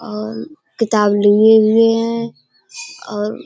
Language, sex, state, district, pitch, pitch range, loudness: Hindi, female, Uttar Pradesh, Budaun, 220 Hz, 205-230 Hz, -14 LUFS